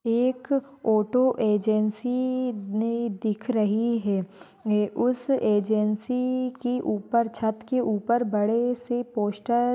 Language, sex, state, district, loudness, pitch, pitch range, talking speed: Hindi, female, Maharashtra, Nagpur, -25 LUFS, 230 Hz, 215-250 Hz, 115 wpm